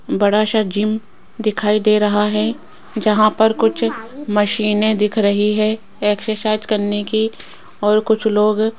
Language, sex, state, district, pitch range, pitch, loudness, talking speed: Hindi, female, Rajasthan, Jaipur, 210-220 Hz, 215 Hz, -17 LUFS, 145 wpm